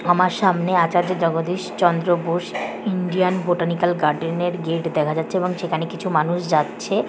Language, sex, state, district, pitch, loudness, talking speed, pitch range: Bengali, female, West Bengal, Kolkata, 175 Hz, -21 LUFS, 145 wpm, 165-180 Hz